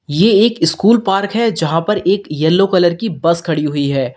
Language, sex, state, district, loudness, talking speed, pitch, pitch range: Hindi, male, Uttar Pradesh, Lalitpur, -14 LUFS, 215 wpm, 175 Hz, 160-205 Hz